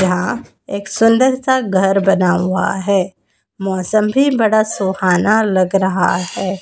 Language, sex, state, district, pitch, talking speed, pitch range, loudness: Hindi, female, Madhya Pradesh, Dhar, 195 Hz, 135 wpm, 185-215 Hz, -15 LUFS